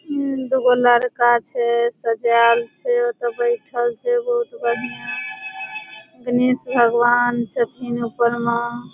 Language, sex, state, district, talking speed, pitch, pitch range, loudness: Maithili, female, Bihar, Supaul, 115 wpm, 240 Hz, 235-260 Hz, -19 LUFS